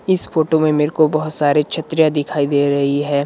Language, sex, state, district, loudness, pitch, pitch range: Hindi, male, Himachal Pradesh, Shimla, -16 LUFS, 150 Hz, 145-160 Hz